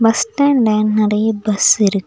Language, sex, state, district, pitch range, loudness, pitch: Tamil, female, Tamil Nadu, Nilgiris, 210-225 Hz, -14 LUFS, 215 Hz